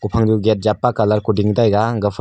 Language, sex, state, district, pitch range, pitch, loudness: Wancho, male, Arunachal Pradesh, Longding, 105-110 Hz, 110 Hz, -16 LUFS